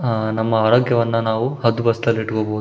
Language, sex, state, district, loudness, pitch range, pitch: Kannada, male, Karnataka, Shimoga, -18 LUFS, 110-115 Hz, 115 Hz